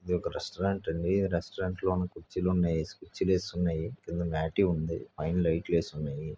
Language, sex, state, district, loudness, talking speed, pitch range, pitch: Telugu, male, Andhra Pradesh, Srikakulam, -31 LUFS, 160 wpm, 80-95 Hz, 90 Hz